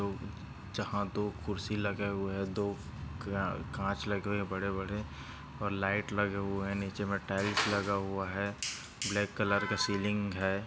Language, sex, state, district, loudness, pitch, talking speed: Hindi, male, Maharashtra, Sindhudurg, -34 LUFS, 100 Hz, 155 wpm